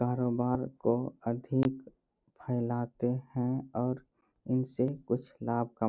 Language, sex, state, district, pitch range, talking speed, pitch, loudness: Hindi, male, Bihar, Bhagalpur, 120-130 Hz, 100 wpm, 125 Hz, -33 LUFS